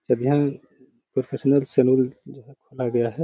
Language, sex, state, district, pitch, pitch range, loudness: Hindi, male, Bihar, Gaya, 135 Hz, 130-140 Hz, -22 LUFS